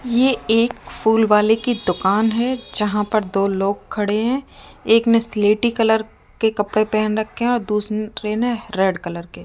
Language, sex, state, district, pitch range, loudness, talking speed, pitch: Hindi, female, Rajasthan, Jaipur, 210-230 Hz, -19 LUFS, 180 wpm, 220 Hz